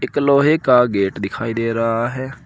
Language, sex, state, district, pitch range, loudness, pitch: Hindi, male, Uttar Pradesh, Shamli, 115-140 Hz, -17 LUFS, 125 Hz